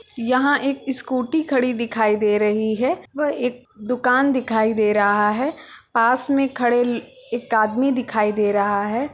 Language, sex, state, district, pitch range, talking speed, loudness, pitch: Hindi, female, Bihar, Purnia, 215-270 Hz, 160 wpm, -20 LUFS, 245 Hz